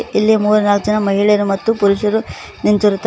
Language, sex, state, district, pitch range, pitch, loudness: Kannada, female, Karnataka, Koppal, 205-210 Hz, 210 Hz, -15 LUFS